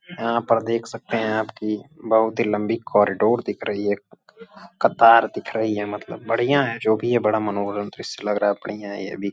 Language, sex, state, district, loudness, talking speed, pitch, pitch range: Hindi, male, Uttar Pradesh, Gorakhpur, -22 LUFS, 230 wpm, 110 Hz, 105-115 Hz